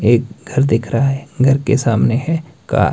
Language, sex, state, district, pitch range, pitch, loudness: Hindi, male, Himachal Pradesh, Shimla, 120-140 Hz, 135 Hz, -16 LUFS